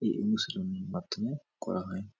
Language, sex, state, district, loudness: Bengali, male, West Bengal, Jhargram, -34 LUFS